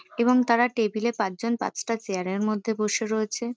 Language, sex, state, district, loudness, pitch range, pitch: Bengali, female, West Bengal, Kolkata, -25 LUFS, 210-235 Hz, 225 Hz